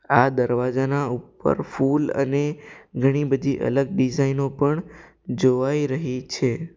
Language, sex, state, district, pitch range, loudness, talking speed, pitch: Gujarati, male, Gujarat, Valsad, 130-145 Hz, -22 LUFS, 125 wpm, 135 Hz